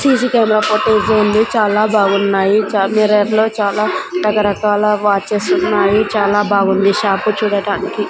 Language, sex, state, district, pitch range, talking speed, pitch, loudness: Telugu, female, Andhra Pradesh, Sri Satya Sai, 205-215 Hz, 125 wpm, 210 Hz, -14 LUFS